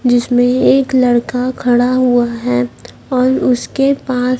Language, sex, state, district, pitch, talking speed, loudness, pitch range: Hindi, male, Madhya Pradesh, Dhar, 250 Hz, 120 wpm, -14 LUFS, 245-255 Hz